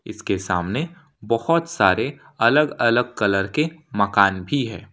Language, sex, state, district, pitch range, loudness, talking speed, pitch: Hindi, male, Jharkhand, Ranchi, 100-150 Hz, -21 LUFS, 135 wpm, 115 Hz